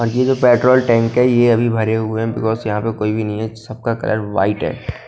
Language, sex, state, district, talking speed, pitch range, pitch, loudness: Hindi, male, Punjab, Kapurthala, 250 wpm, 110-120 Hz, 115 Hz, -16 LUFS